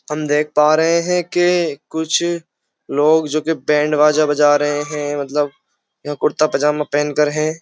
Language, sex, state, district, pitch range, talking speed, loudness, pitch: Hindi, male, Uttar Pradesh, Jyotiba Phule Nagar, 150-160 Hz, 155 wpm, -17 LUFS, 150 Hz